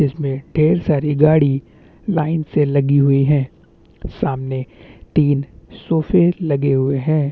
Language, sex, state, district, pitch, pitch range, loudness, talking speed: Hindi, male, Chhattisgarh, Bastar, 145 Hz, 135-155 Hz, -17 LUFS, 130 wpm